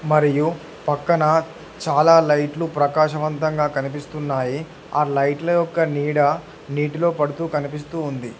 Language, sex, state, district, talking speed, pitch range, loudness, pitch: Telugu, male, Telangana, Hyderabad, 100 wpm, 145-160 Hz, -20 LUFS, 150 Hz